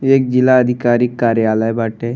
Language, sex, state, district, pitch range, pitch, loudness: Bhojpuri, male, Uttar Pradesh, Deoria, 115-125 Hz, 120 Hz, -14 LUFS